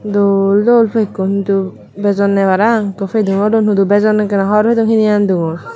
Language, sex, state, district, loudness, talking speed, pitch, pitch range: Chakma, female, Tripura, Dhalai, -13 LUFS, 155 wpm, 205 Hz, 195-215 Hz